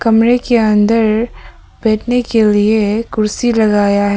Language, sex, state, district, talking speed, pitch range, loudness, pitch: Hindi, female, Arunachal Pradesh, Papum Pare, 130 wpm, 210-230 Hz, -13 LUFS, 220 Hz